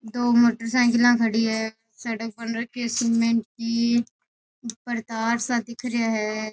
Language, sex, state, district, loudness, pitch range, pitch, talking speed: Rajasthani, female, Rajasthan, Nagaur, -23 LUFS, 225-235 Hz, 230 Hz, 145 wpm